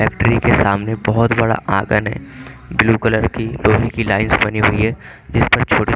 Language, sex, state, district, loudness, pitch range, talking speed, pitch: Hindi, male, Chandigarh, Chandigarh, -16 LUFS, 105-115 Hz, 190 wpm, 110 Hz